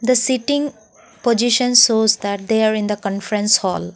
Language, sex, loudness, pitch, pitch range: English, female, -16 LUFS, 220 Hz, 210-250 Hz